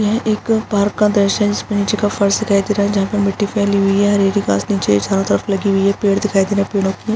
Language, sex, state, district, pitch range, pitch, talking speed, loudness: Hindi, female, Bihar, Araria, 195-210 Hz, 200 Hz, 310 wpm, -16 LUFS